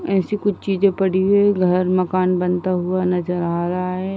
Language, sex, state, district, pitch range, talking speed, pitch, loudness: Hindi, female, Uttar Pradesh, Ghazipur, 180-195 Hz, 200 wpm, 185 Hz, -19 LUFS